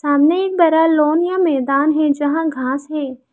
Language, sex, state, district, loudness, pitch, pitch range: Hindi, female, Arunachal Pradesh, Lower Dibang Valley, -16 LUFS, 300 Hz, 285-325 Hz